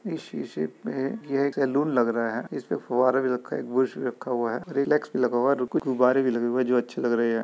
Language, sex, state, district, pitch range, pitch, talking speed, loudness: Hindi, male, Uttar Pradesh, Etah, 120-135 Hz, 125 Hz, 265 wpm, -26 LUFS